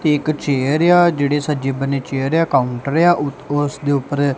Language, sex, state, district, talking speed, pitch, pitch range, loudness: Punjabi, male, Punjab, Kapurthala, 245 wpm, 145 Hz, 140-155 Hz, -17 LUFS